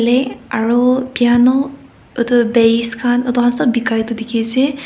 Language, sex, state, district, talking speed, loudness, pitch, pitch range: Nagamese, female, Nagaland, Kohima, 150 wpm, -15 LUFS, 240 Hz, 230-255 Hz